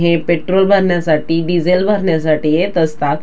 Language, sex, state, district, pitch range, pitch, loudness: Marathi, female, Maharashtra, Dhule, 160-180 Hz, 170 Hz, -14 LUFS